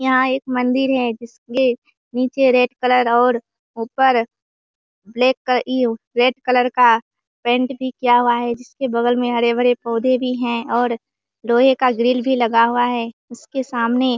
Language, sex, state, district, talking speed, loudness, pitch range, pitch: Hindi, female, Bihar, Kishanganj, 155 wpm, -18 LUFS, 235-255 Hz, 245 Hz